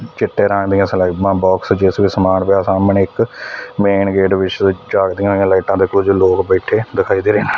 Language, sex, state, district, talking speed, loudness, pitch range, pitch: Punjabi, male, Punjab, Fazilka, 200 wpm, -14 LUFS, 95-100 Hz, 95 Hz